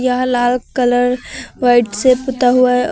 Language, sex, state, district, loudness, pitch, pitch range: Hindi, female, Uttar Pradesh, Lucknow, -14 LUFS, 250 Hz, 245-255 Hz